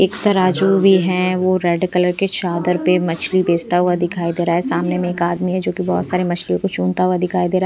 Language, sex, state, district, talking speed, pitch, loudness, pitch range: Hindi, female, Punjab, Pathankot, 260 wpm, 180 Hz, -17 LUFS, 175-185 Hz